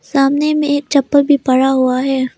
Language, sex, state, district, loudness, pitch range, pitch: Hindi, female, Arunachal Pradesh, Lower Dibang Valley, -14 LUFS, 265-285 Hz, 275 Hz